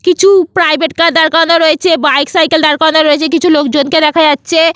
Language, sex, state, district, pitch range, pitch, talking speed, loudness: Bengali, female, West Bengal, Paschim Medinipur, 305-335 Hz, 320 Hz, 190 wpm, -9 LUFS